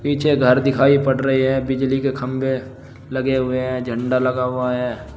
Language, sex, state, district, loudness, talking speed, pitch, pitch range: Hindi, male, Uttar Pradesh, Saharanpur, -19 LUFS, 185 wpm, 130 Hz, 125-135 Hz